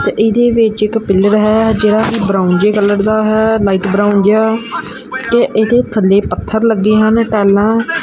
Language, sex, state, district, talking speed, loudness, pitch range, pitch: Punjabi, male, Punjab, Kapurthala, 180 wpm, -12 LUFS, 205-225 Hz, 215 Hz